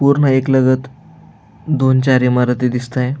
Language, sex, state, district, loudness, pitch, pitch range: Marathi, male, Maharashtra, Aurangabad, -15 LUFS, 130 Hz, 125-140 Hz